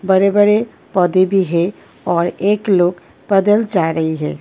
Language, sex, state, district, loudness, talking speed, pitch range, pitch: Hindi, female, Delhi, New Delhi, -15 LUFS, 150 wpm, 175-205 Hz, 190 Hz